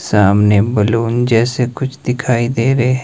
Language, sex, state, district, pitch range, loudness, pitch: Hindi, male, Himachal Pradesh, Shimla, 110-125 Hz, -14 LUFS, 120 Hz